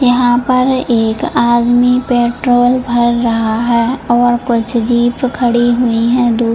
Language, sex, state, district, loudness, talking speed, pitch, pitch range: Hindi, female, Chhattisgarh, Bilaspur, -12 LUFS, 130 wpm, 240 Hz, 235-245 Hz